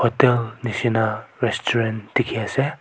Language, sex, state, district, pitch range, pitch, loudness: Nagamese, male, Nagaland, Kohima, 110-120 Hz, 115 Hz, -22 LUFS